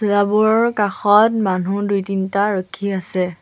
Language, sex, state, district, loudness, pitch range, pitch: Assamese, female, Assam, Sonitpur, -17 LUFS, 190-210 Hz, 200 Hz